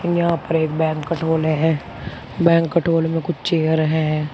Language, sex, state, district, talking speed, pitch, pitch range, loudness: Hindi, male, Uttar Pradesh, Shamli, 165 wpm, 160 Hz, 155-170 Hz, -19 LUFS